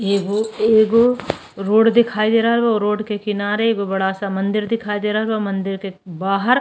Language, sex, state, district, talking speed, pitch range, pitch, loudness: Bhojpuri, female, Uttar Pradesh, Ghazipur, 200 wpm, 200-225 Hz, 210 Hz, -18 LUFS